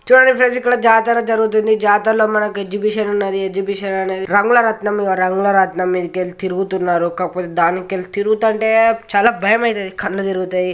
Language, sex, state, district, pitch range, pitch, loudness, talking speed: Telugu, male, Telangana, Karimnagar, 190-220 Hz, 200 Hz, -16 LUFS, 140 wpm